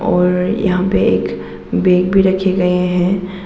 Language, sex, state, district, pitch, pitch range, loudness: Hindi, female, Arunachal Pradesh, Papum Pare, 180 Hz, 180-190 Hz, -15 LUFS